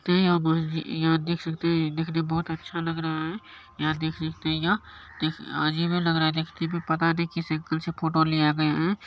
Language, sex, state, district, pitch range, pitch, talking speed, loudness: Maithili, male, Bihar, Supaul, 160-170 Hz, 160 Hz, 190 wpm, -26 LUFS